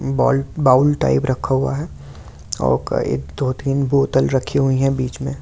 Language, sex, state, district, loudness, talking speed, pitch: Hindi, male, Delhi, New Delhi, -18 LUFS, 165 wpm, 130 Hz